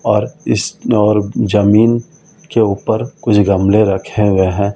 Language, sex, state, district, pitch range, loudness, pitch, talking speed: Hindi, male, Delhi, New Delhi, 100-115 Hz, -14 LUFS, 105 Hz, 140 wpm